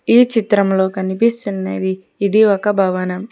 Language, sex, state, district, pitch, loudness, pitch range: Telugu, female, Telangana, Hyderabad, 200 Hz, -16 LUFS, 190-215 Hz